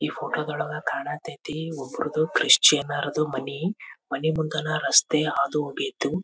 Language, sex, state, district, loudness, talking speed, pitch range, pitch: Kannada, male, Karnataka, Belgaum, -24 LUFS, 115 wpm, 150-160 Hz, 155 Hz